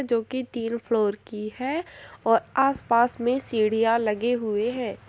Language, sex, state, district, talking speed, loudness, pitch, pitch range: Hindi, female, Uttar Pradesh, Jyotiba Phule Nagar, 140 wpm, -25 LUFS, 230 Hz, 215-250 Hz